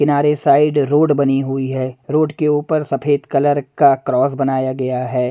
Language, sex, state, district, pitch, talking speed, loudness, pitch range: Hindi, male, Punjab, Pathankot, 140 Hz, 180 wpm, -16 LUFS, 130-150 Hz